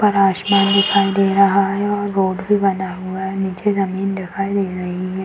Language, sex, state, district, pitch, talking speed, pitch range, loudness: Hindi, female, Uttar Pradesh, Varanasi, 195 Hz, 205 wpm, 190-200 Hz, -18 LUFS